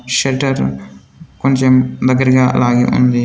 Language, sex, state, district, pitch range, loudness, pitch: Telugu, male, Telangana, Komaram Bheem, 120-130 Hz, -13 LUFS, 125 Hz